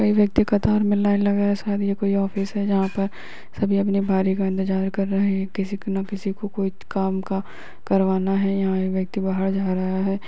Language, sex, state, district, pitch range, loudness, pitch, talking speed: Hindi, female, Bihar, Lakhisarai, 190-200 Hz, -22 LUFS, 195 Hz, 220 wpm